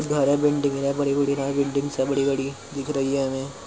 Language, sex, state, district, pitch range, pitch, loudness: Hindi, male, Uttar Pradesh, Muzaffarnagar, 135-140 Hz, 140 Hz, -24 LUFS